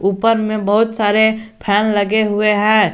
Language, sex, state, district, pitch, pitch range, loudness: Hindi, male, Jharkhand, Garhwa, 215 Hz, 205-220 Hz, -15 LUFS